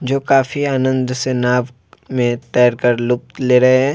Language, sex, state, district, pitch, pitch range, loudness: Hindi, male, Bihar, Vaishali, 125 Hz, 125-130 Hz, -16 LUFS